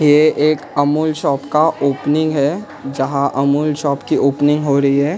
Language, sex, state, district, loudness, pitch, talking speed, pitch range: Hindi, male, Maharashtra, Mumbai Suburban, -16 LUFS, 145 Hz, 175 wpm, 140-150 Hz